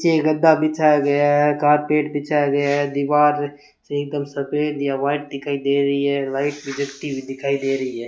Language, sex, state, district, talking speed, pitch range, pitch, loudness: Hindi, male, Rajasthan, Bikaner, 200 wpm, 140-150 Hz, 145 Hz, -20 LUFS